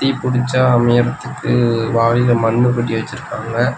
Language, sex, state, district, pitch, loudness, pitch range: Tamil, male, Tamil Nadu, Nilgiris, 120 Hz, -16 LUFS, 115-125 Hz